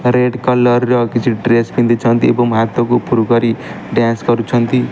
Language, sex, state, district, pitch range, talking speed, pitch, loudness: Odia, male, Odisha, Malkangiri, 115-120 Hz, 145 wpm, 120 Hz, -14 LUFS